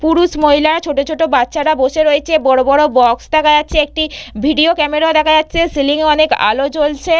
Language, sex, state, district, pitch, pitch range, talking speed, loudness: Bengali, female, West Bengal, Purulia, 305 Hz, 285-315 Hz, 185 wpm, -12 LUFS